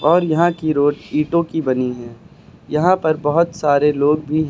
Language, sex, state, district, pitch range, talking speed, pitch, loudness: Hindi, male, Uttar Pradesh, Lucknow, 145-165 Hz, 200 wpm, 155 Hz, -17 LUFS